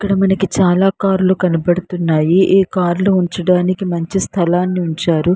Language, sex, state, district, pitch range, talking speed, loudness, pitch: Telugu, female, Andhra Pradesh, Srikakulam, 175-190 Hz, 125 wpm, -15 LUFS, 180 Hz